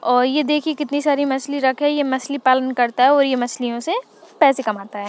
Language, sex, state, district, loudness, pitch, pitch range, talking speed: Hindi, female, Chhattisgarh, Sukma, -19 LUFS, 265 Hz, 250-290 Hz, 225 wpm